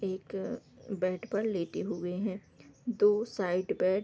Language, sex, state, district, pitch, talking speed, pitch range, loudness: Hindi, female, Bihar, Darbhanga, 195 Hz, 150 wpm, 185-210 Hz, -32 LUFS